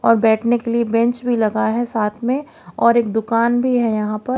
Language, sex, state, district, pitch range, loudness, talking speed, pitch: Hindi, female, Haryana, Jhajjar, 220-240 Hz, -18 LUFS, 235 wpm, 235 Hz